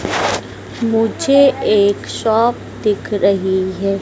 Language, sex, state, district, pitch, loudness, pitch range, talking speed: Hindi, female, Madhya Pradesh, Dhar, 210 Hz, -16 LUFS, 195-230 Hz, 90 wpm